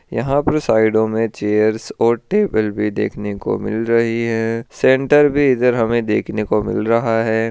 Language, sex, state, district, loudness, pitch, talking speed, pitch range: Hindi, male, Rajasthan, Churu, -17 LUFS, 115 Hz, 175 wpm, 110-125 Hz